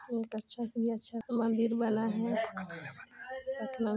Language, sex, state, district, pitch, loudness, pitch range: Hindi, female, Chhattisgarh, Sarguja, 225 Hz, -34 LUFS, 220-235 Hz